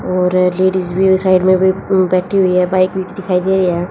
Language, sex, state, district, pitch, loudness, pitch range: Hindi, female, Haryana, Jhajjar, 185 Hz, -14 LUFS, 180-190 Hz